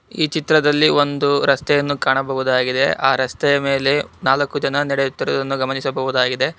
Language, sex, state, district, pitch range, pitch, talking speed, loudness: Kannada, male, Karnataka, Bangalore, 130-145 Hz, 135 Hz, 110 wpm, -18 LUFS